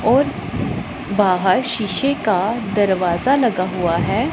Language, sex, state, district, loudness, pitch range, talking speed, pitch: Hindi, female, Punjab, Pathankot, -18 LUFS, 185-245 Hz, 110 wpm, 205 Hz